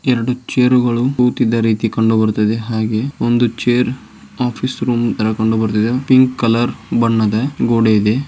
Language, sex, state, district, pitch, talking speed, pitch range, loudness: Kannada, male, Karnataka, Dharwad, 120 Hz, 140 wpm, 110-125 Hz, -15 LUFS